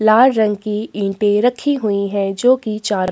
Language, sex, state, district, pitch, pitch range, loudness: Hindi, female, Chhattisgarh, Korba, 210 Hz, 200-235 Hz, -17 LUFS